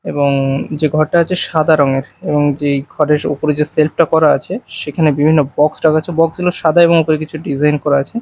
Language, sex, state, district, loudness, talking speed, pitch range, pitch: Bengali, male, Odisha, Malkangiri, -14 LUFS, 210 wpm, 145-160 Hz, 155 Hz